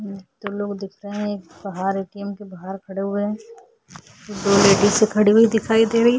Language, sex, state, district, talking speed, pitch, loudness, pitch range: Hindi, female, Chhattisgarh, Sukma, 205 wpm, 205 Hz, -19 LUFS, 195-215 Hz